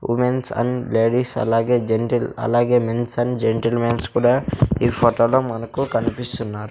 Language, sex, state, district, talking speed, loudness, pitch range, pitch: Telugu, male, Andhra Pradesh, Sri Satya Sai, 135 wpm, -19 LUFS, 115-125 Hz, 120 Hz